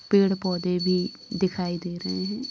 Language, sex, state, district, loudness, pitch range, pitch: Hindi, female, Bihar, Muzaffarpur, -26 LUFS, 180-195 Hz, 185 Hz